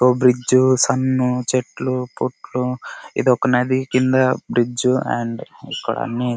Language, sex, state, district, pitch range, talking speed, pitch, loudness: Telugu, male, Karnataka, Bellary, 125-130 Hz, 75 wpm, 125 Hz, -19 LUFS